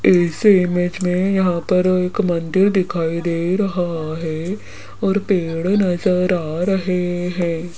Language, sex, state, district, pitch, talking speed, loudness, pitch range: Hindi, female, Rajasthan, Jaipur, 180 Hz, 130 wpm, -18 LUFS, 170-190 Hz